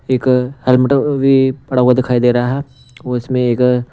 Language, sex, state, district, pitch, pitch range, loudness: Hindi, male, Punjab, Pathankot, 125 Hz, 125-130 Hz, -14 LUFS